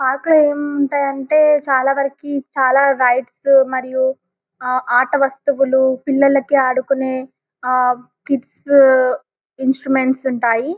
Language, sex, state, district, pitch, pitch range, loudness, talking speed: Telugu, female, Telangana, Karimnagar, 265 Hz, 260-280 Hz, -16 LUFS, 100 wpm